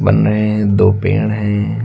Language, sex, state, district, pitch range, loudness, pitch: Hindi, male, Uttar Pradesh, Lucknow, 105-110 Hz, -14 LUFS, 105 Hz